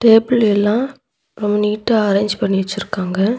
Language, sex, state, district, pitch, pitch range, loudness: Tamil, female, Tamil Nadu, Kanyakumari, 210 Hz, 200-225 Hz, -17 LUFS